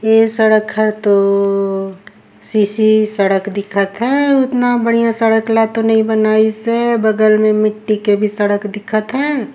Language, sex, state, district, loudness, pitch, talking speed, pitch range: Surgujia, female, Chhattisgarh, Sarguja, -14 LUFS, 215 Hz, 155 wpm, 205-225 Hz